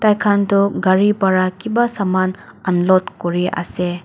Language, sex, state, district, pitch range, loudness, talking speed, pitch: Nagamese, female, Nagaland, Dimapur, 185-205 Hz, -17 LUFS, 120 wpm, 190 Hz